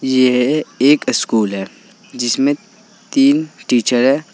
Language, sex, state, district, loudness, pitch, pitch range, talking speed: Hindi, male, Uttar Pradesh, Saharanpur, -15 LUFS, 135 Hz, 125-155 Hz, 110 wpm